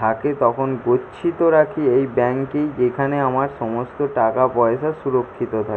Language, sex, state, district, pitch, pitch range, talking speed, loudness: Bengali, male, West Bengal, Jalpaiguri, 130 Hz, 120-140 Hz, 135 wpm, -19 LUFS